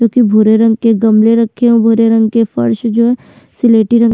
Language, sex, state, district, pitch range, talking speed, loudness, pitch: Hindi, female, Uttarakhand, Tehri Garhwal, 220-230 Hz, 215 wpm, -10 LUFS, 225 Hz